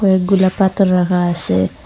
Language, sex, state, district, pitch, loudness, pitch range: Bengali, female, Assam, Hailakandi, 185 Hz, -15 LUFS, 175-195 Hz